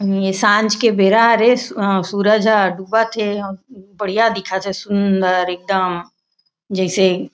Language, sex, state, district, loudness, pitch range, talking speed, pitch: Chhattisgarhi, female, Chhattisgarh, Raigarh, -16 LUFS, 190-215 Hz, 130 wpm, 200 Hz